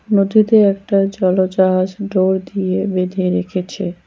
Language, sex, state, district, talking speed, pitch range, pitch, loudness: Bengali, female, West Bengal, Cooch Behar, 120 wpm, 185-200 Hz, 190 Hz, -16 LUFS